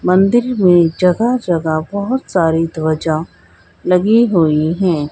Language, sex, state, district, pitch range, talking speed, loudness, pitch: Hindi, female, Haryana, Jhajjar, 155-195 Hz, 115 wpm, -14 LUFS, 175 Hz